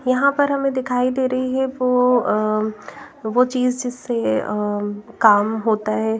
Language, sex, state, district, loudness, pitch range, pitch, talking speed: Hindi, female, Bihar, Patna, -19 LUFS, 215-255 Hz, 245 Hz, 155 wpm